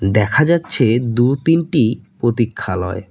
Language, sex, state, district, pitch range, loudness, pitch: Bengali, male, West Bengal, Cooch Behar, 105-150 Hz, -16 LUFS, 120 Hz